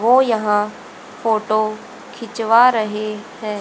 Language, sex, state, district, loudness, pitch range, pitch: Hindi, female, Haryana, Rohtak, -18 LUFS, 215-230 Hz, 220 Hz